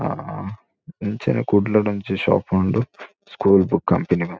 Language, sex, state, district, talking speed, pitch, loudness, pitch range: Tulu, male, Karnataka, Dakshina Kannada, 135 wpm, 100 Hz, -20 LUFS, 95-105 Hz